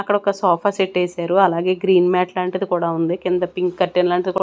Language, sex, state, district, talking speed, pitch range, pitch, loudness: Telugu, female, Andhra Pradesh, Annamaya, 190 wpm, 180-190 Hz, 180 Hz, -19 LUFS